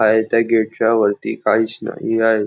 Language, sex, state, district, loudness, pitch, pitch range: Marathi, male, Maharashtra, Nagpur, -17 LUFS, 110 Hz, 110-115 Hz